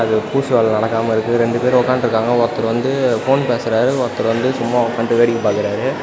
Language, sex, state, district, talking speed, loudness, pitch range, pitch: Tamil, male, Tamil Nadu, Namakkal, 180 wpm, -16 LUFS, 115-125 Hz, 115 Hz